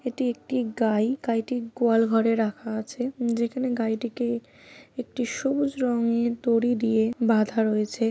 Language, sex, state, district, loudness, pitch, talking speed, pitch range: Bengali, female, West Bengal, Paschim Medinipur, -25 LUFS, 235 Hz, 135 wpm, 225-250 Hz